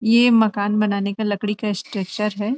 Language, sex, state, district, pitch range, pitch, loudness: Hindi, female, Chhattisgarh, Rajnandgaon, 205-220 Hz, 210 Hz, -20 LUFS